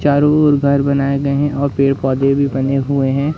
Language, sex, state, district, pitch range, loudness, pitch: Hindi, male, Madhya Pradesh, Katni, 135-140 Hz, -15 LUFS, 140 Hz